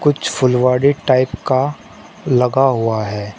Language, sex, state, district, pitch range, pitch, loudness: Hindi, male, Uttar Pradesh, Shamli, 115-135 Hz, 130 Hz, -16 LUFS